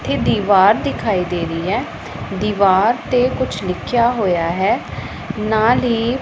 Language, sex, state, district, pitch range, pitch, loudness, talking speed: Punjabi, female, Punjab, Pathankot, 190-235 Hz, 210 Hz, -17 LUFS, 145 wpm